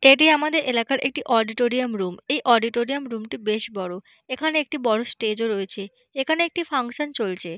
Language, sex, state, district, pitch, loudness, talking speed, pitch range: Bengali, female, West Bengal, Purulia, 245 Hz, -23 LUFS, 180 wpm, 220-280 Hz